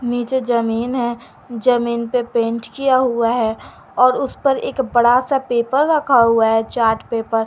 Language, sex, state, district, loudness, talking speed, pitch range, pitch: Hindi, female, Jharkhand, Garhwa, -17 LUFS, 185 wpm, 230-255 Hz, 240 Hz